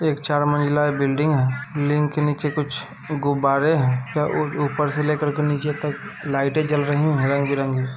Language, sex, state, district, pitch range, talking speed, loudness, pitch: Hindi, male, Bihar, Saran, 140-150 Hz, 180 wpm, -21 LUFS, 145 Hz